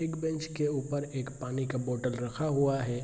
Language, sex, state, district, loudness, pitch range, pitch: Hindi, male, Bihar, Araria, -32 LUFS, 125-150 Hz, 135 Hz